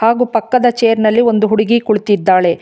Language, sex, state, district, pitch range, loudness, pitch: Kannada, female, Karnataka, Bangalore, 210-235 Hz, -13 LUFS, 225 Hz